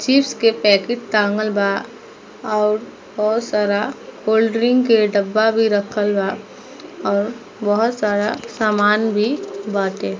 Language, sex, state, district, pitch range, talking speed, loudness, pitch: Bhojpuri, female, Bihar, East Champaran, 205-230 Hz, 125 wpm, -18 LUFS, 215 Hz